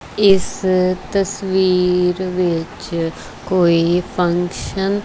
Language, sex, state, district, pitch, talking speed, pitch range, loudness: Punjabi, female, Punjab, Kapurthala, 180 Hz, 70 wpm, 175-190 Hz, -17 LUFS